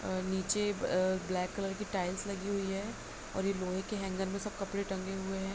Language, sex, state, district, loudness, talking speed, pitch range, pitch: Hindi, female, Bihar, Jamui, -35 LUFS, 225 wpm, 185-200 Hz, 195 Hz